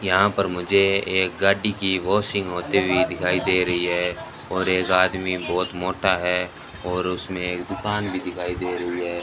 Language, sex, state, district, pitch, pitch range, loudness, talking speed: Hindi, male, Rajasthan, Bikaner, 90 Hz, 90-95 Hz, -22 LUFS, 180 wpm